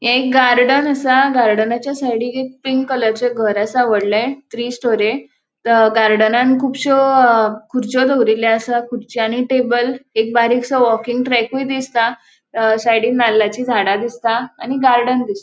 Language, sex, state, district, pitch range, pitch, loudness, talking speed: Konkani, female, Goa, North and South Goa, 225-255 Hz, 240 Hz, -15 LUFS, 145 wpm